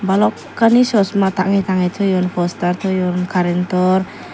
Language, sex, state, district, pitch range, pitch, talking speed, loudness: Chakma, female, Tripura, Dhalai, 180-195 Hz, 185 Hz, 110 wpm, -16 LUFS